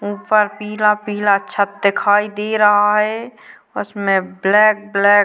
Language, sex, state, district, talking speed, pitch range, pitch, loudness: Hindi, female, Uttar Pradesh, Jalaun, 135 wpm, 200-210 Hz, 205 Hz, -16 LUFS